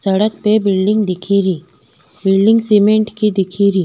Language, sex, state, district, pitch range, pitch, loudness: Rajasthani, female, Rajasthan, Nagaur, 190-215 Hz, 200 Hz, -14 LUFS